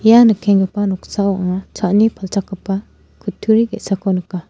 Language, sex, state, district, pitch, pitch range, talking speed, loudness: Garo, female, Meghalaya, West Garo Hills, 200 Hz, 190-210 Hz, 120 wpm, -17 LUFS